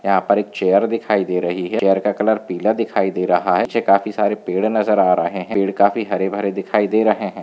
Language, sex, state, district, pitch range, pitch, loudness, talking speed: Hindi, male, Andhra Pradesh, Visakhapatnam, 95-110 Hz, 100 Hz, -18 LUFS, 260 wpm